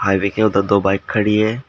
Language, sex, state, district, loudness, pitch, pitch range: Hindi, male, Uttar Pradesh, Shamli, -17 LUFS, 105 Hz, 100-110 Hz